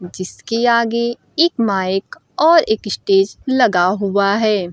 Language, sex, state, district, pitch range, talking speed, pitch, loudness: Hindi, female, Bihar, Kaimur, 195-235 Hz, 125 wpm, 210 Hz, -16 LUFS